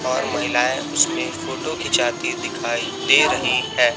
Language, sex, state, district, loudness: Hindi, male, Chhattisgarh, Raipur, -20 LUFS